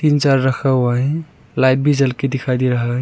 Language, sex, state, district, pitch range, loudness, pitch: Hindi, male, Arunachal Pradesh, Lower Dibang Valley, 125-140 Hz, -17 LUFS, 135 Hz